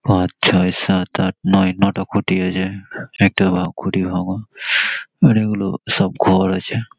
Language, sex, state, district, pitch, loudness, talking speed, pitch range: Bengali, male, West Bengal, Malda, 95 Hz, -17 LUFS, 130 wpm, 90-100 Hz